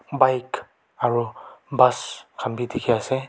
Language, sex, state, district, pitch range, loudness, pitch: Nagamese, male, Nagaland, Kohima, 120-130 Hz, -23 LUFS, 120 Hz